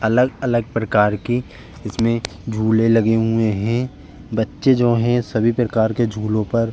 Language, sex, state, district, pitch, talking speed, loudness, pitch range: Hindi, male, Uttar Pradesh, Jalaun, 115 Hz, 150 wpm, -19 LUFS, 110-120 Hz